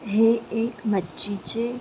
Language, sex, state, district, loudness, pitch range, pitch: Marathi, female, Maharashtra, Sindhudurg, -25 LUFS, 205-230 Hz, 225 Hz